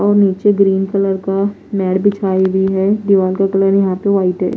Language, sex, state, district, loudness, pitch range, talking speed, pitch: Hindi, female, Odisha, Nuapada, -14 LUFS, 190-200 Hz, 210 wpm, 195 Hz